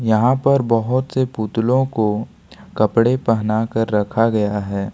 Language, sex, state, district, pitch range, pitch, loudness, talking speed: Hindi, male, Jharkhand, Ranchi, 110-125 Hz, 115 Hz, -18 LUFS, 145 wpm